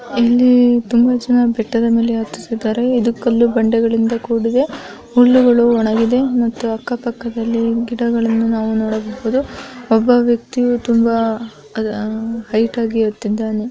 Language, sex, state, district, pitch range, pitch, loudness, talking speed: Kannada, female, Karnataka, Mysore, 225-245 Hz, 230 Hz, -16 LUFS, 110 wpm